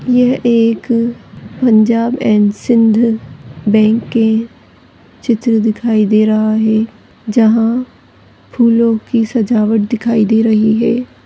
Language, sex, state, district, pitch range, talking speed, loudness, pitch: Hindi, female, Chhattisgarh, Rajnandgaon, 220-235 Hz, 105 wpm, -13 LUFS, 225 Hz